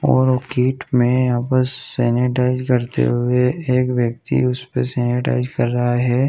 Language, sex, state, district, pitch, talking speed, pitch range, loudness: Hindi, male, Chhattisgarh, Bilaspur, 125 Hz, 145 wpm, 120-130 Hz, -18 LUFS